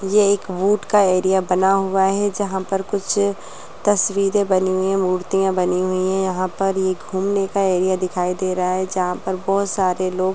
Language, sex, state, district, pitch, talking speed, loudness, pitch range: Hindi, female, Bihar, Muzaffarpur, 190 Hz, 190 wpm, -19 LUFS, 185-195 Hz